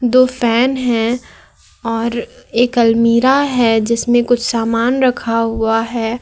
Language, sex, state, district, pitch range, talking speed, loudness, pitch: Hindi, female, Jharkhand, Garhwa, 230-245 Hz, 125 wpm, -15 LUFS, 235 Hz